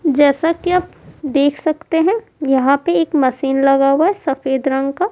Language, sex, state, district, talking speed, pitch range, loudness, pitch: Hindi, female, Bihar, Kaimur, 190 wpm, 275-330 Hz, -16 LUFS, 290 Hz